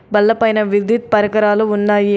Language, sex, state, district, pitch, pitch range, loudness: Telugu, female, Telangana, Adilabad, 210 Hz, 205-220 Hz, -14 LUFS